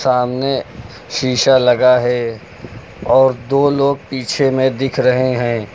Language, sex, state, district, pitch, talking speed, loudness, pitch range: Hindi, male, Uttar Pradesh, Lucknow, 130 Hz, 125 wpm, -15 LUFS, 120-135 Hz